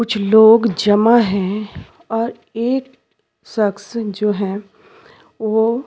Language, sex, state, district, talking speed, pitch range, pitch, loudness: Hindi, female, Chhattisgarh, Sukma, 100 wpm, 205-235 Hz, 220 Hz, -16 LUFS